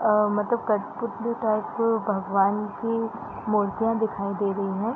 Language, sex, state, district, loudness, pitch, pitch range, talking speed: Hindi, female, Bihar, East Champaran, -26 LUFS, 215 Hz, 205-230 Hz, 135 wpm